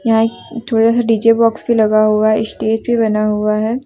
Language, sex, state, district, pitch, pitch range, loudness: Hindi, female, Jharkhand, Deoghar, 225 Hz, 215-230 Hz, -14 LUFS